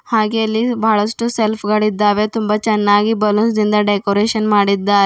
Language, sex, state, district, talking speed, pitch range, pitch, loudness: Kannada, female, Karnataka, Bidar, 140 wpm, 205-220 Hz, 215 Hz, -15 LUFS